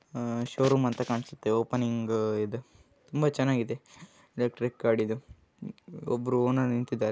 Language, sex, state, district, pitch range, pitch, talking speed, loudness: Kannada, male, Karnataka, Raichur, 115-130 Hz, 120 Hz, 125 wpm, -29 LUFS